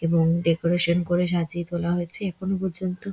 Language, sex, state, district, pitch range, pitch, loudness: Bengali, female, West Bengal, Dakshin Dinajpur, 170-185 Hz, 175 Hz, -24 LUFS